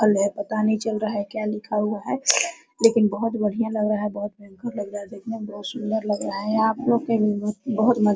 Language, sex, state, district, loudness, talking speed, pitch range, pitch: Hindi, female, Bihar, Araria, -24 LUFS, 240 wpm, 205-225 Hz, 215 Hz